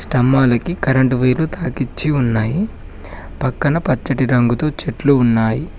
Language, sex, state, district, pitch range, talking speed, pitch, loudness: Telugu, male, Telangana, Mahabubabad, 120-150 Hz, 105 wpm, 130 Hz, -17 LUFS